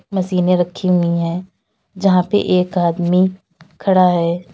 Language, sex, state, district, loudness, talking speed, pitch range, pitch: Hindi, female, Uttar Pradesh, Lalitpur, -16 LUFS, 130 wpm, 175-185 Hz, 180 Hz